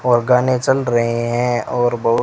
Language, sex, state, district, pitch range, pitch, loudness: Hindi, male, Rajasthan, Bikaner, 120-125 Hz, 120 Hz, -17 LUFS